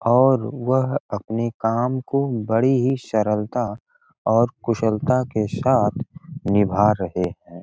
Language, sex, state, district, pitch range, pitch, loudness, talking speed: Hindi, male, Bihar, Gopalganj, 105-125 Hz, 115 Hz, -21 LUFS, 120 wpm